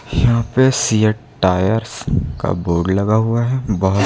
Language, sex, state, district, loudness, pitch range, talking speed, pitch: Hindi, male, Uttar Pradesh, Lucknow, -17 LUFS, 95-120 Hz, 145 wpm, 110 Hz